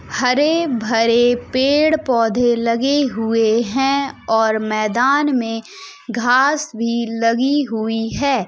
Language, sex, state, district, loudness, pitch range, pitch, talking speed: Hindi, female, Uttar Pradesh, Jalaun, -17 LUFS, 225-275 Hz, 240 Hz, 100 wpm